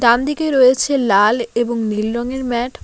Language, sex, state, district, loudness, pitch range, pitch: Bengali, female, West Bengal, Alipurduar, -16 LUFS, 235-260 Hz, 240 Hz